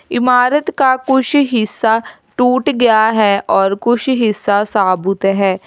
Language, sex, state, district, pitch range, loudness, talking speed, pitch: Hindi, female, Uttar Pradesh, Lalitpur, 205-260 Hz, -13 LUFS, 125 wpm, 225 Hz